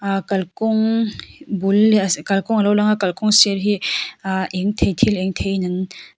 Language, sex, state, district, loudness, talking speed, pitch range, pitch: Mizo, female, Mizoram, Aizawl, -18 LUFS, 195 wpm, 190-215 Hz, 200 Hz